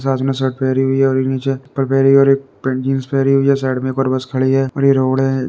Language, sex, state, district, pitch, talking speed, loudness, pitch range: Hindi, male, Uttar Pradesh, Deoria, 135 Hz, 315 wpm, -16 LUFS, 130-135 Hz